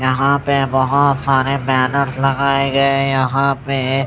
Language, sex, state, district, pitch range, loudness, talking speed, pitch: Hindi, male, Bihar, Patna, 135-140 Hz, -16 LUFS, 130 wpm, 135 Hz